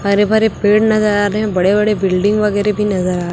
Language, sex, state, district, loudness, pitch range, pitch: Hindi, male, Chhattisgarh, Raipur, -14 LUFS, 195-210 Hz, 205 Hz